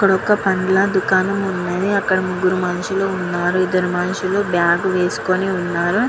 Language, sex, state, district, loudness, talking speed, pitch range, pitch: Telugu, female, Andhra Pradesh, Guntur, -18 LUFS, 140 wpm, 180-195 Hz, 185 Hz